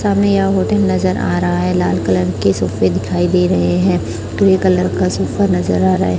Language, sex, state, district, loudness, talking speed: Hindi, male, Chhattisgarh, Raipur, -15 LUFS, 225 wpm